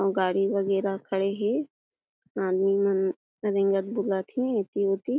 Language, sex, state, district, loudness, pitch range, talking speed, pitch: Chhattisgarhi, female, Chhattisgarh, Jashpur, -27 LUFS, 195-205 Hz, 150 wpm, 195 Hz